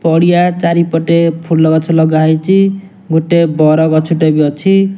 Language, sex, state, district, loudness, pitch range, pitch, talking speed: Odia, male, Odisha, Nuapada, -11 LUFS, 160-175 Hz, 165 Hz, 145 wpm